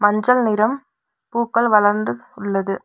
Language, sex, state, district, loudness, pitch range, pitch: Tamil, female, Tamil Nadu, Nilgiris, -18 LUFS, 205-235 Hz, 215 Hz